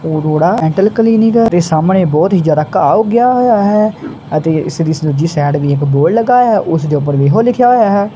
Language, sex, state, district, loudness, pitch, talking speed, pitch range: Punjabi, female, Punjab, Kapurthala, -11 LUFS, 175 Hz, 235 wpm, 155-225 Hz